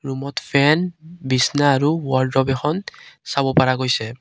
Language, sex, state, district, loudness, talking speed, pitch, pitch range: Assamese, male, Assam, Kamrup Metropolitan, -19 LUFS, 130 wpm, 140 Hz, 130-150 Hz